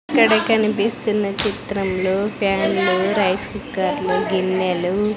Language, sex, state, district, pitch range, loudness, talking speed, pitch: Telugu, female, Andhra Pradesh, Sri Satya Sai, 185-215 Hz, -19 LUFS, 95 wpm, 200 Hz